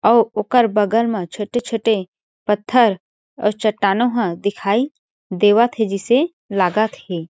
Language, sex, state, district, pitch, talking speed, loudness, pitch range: Chhattisgarhi, female, Chhattisgarh, Jashpur, 215 Hz, 125 wpm, -18 LUFS, 200-235 Hz